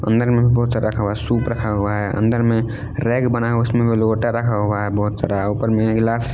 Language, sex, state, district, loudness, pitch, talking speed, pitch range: Hindi, male, Jharkhand, Palamu, -19 LUFS, 115 Hz, 275 wpm, 105-120 Hz